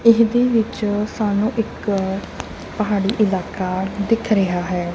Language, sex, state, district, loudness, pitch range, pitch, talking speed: Punjabi, female, Punjab, Kapurthala, -20 LUFS, 190-225 Hz, 205 Hz, 110 wpm